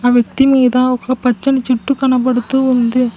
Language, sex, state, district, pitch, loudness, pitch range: Telugu, female, Telangana, Mahabubabad, 255 Hz, -13 LUFS, 245-265 Hz